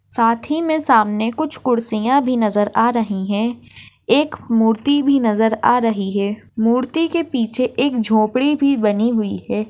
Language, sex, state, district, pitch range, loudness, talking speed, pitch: Hindi, female, Maharashtra, Sindhudurg, 220-275 Hz, -17 LUFS, 165 wpm, 230 Hz